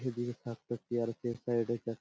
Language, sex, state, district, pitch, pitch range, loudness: Bengali, male, West Bengal, Purulia, 120 Hz, 115-120 Hz, -36 LUFS